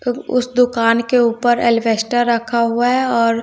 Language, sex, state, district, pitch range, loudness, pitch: Hindi, female, Bihar, West Champaran, 230-245 Hz, -16 LUFS, 235 Hz